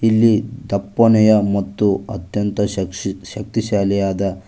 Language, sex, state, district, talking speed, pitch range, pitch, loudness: Kannada, male, Karnataka, Koppal, 80 wpm, 100-110 Hz, 100 Hz, -18 LUFS